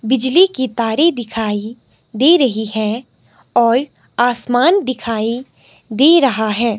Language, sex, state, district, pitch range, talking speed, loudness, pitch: Hindi, female, Himachal Pradesh, Shimla, 220-265 Hz, 115 wpm, -15 LUFS, 245 Hz